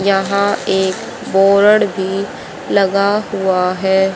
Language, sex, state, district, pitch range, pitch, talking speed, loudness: Hindi, female, Haryana, Jhajjar, 190-200 Hz, 195 Hz, 100 wpm, -14 LUFS